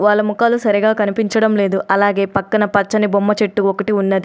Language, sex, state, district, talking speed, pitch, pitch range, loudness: Telugu, female, Telangana, Adilabad, 170 wpm, 210 Hz, 200-215 Hz, -16 LUFS